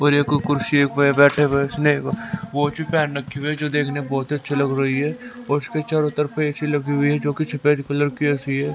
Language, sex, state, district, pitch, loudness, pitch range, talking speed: Hindi, male, Haryana, Rohtak, 145 Hz, -20 LUFS, 140-150 Hz, 190 wpm